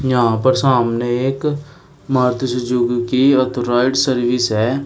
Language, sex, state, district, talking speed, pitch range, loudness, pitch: Hindi, male, Uttar Pradesh, Shamli, 125 wpm, 120-135 Hz, -16 LUFS, 125 Hz